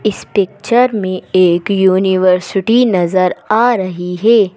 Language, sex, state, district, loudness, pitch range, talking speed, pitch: Hindi, female, Madhya Pradesh, Bhopal, -13 LUFS, 185-215 Hz, 120 wpm, 190 Hz